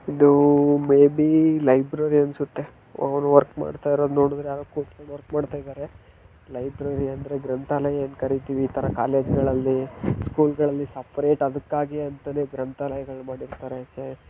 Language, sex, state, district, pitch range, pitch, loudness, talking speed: Kannada, male, Karnataka, Dharwad, 135-145 Hz, 140 Hz, -22 LUFS, 85 wpm